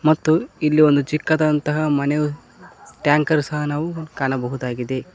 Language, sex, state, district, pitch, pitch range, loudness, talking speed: Kannada, male, Karnataka, Koppal, 150 Hz, 145-155 Hz, -20 LUFS, 105 wpm